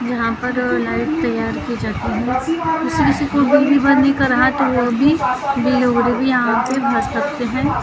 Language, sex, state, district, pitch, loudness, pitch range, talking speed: Hindi, female, Maharashtra, Gondia, 265 Hz, -17 LUFS, 245-285 Hz, 185 wpm